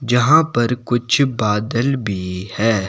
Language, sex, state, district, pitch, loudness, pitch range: Hindi, male, Himachal Pradesh, Shimla, 120 Hz, -18 LUFS, 105-125 Hz